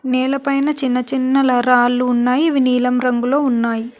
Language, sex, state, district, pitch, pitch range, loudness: Telugu, female, Telangana, Hyderabad, 255 Hz, 250-270 Hz, -16 LUFS